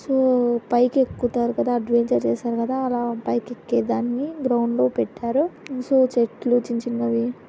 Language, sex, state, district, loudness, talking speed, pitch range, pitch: Telugu, female, Andhra Pradesh, Anantapur, -22 LUFS, 135 wpm, 235-255 Hz, 240 Hz